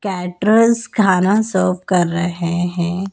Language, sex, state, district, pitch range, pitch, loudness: Hindi, female, Madhya Pradesh, Dhar, 175-205 Hz, 185 Hz, -16 LUFS